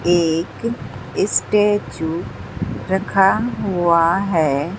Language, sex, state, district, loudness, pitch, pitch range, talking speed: Hindi, female, Bihar, Katihar, -19 LUFS, 175 Hz, 160-195 Hz, 65 wpm